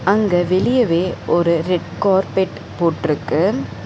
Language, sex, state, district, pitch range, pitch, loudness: Tamil, female, Tamil Nadu, Chennai, 170-195 Hz, 185 Hz, -18 LUFS